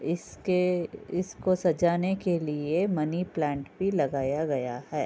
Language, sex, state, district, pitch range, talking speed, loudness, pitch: Hindi, female, Uttar Pradesh, Budaun, 150-180 Hz, 120 wpm, -28 LUFS, 170 Hz